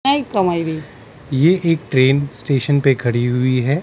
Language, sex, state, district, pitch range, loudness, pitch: Hindi, male, Maharashtra, Mumbai Suburban, 130-165 Hz, -17 LUFS, 140 Hz